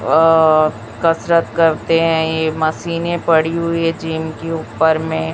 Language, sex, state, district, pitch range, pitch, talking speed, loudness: Hindi, female, Chhattisgarh, Raipur, 160-165 Hz, 160 Hz, 110 wpm, -16 LUFS